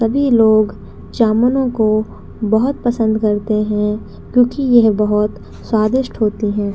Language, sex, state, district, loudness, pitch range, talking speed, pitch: Hindi, female, Chhattisgarh, Raigarh, -15 LUFS, 210-240 Hz, 125 wpm, 220 Hz